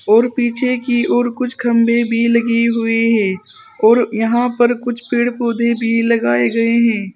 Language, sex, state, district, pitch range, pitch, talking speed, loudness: Hindi, female, Uttar Pradesh, Saharanpur, 230-240 Hz, 235 Hz, 170 wpm, -15 LUFS